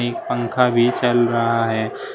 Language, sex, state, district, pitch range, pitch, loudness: Hindi, male, Uttar Pradesh, Shamli, 115-120 Hz, 120 Hz, -18 LUFS